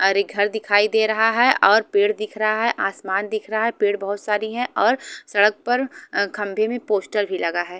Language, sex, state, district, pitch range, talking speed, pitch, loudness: Hindi, female, Haryana, Charkhi Dadri, 200-220 Hz, 225 wpm, 210 Hz, -20 LUFS